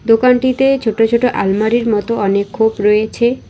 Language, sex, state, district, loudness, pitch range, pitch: Bengali, female, West Bengal, Alipurduar, -14 LUFS, 210-245 Hz, 225 Hz